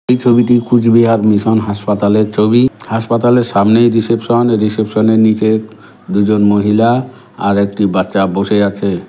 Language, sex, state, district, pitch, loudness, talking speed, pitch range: Bengali, male, West Bengal, Cooch Behar, 110 Hz, -12 LUFS, 120 wpm, 105-115 Hz